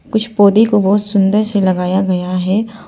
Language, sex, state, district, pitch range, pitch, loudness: Hindi, female, Arunachal Pradesh, Papum Pare, 190-215 Hz, 205 Hz, -13 LUFS